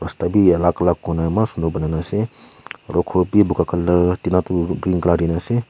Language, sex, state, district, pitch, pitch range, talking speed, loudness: Nagamese, male, Nagaland, Kohima, 90 Hz, 85-95 Hz, 190 wpm, -18 LUFS